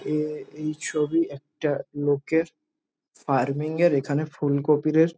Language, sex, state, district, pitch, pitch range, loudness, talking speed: Bengali, male, West Bengal, Jhargram, 150 Hz, 145-165 Hz, -25 LUFS, 105 wpm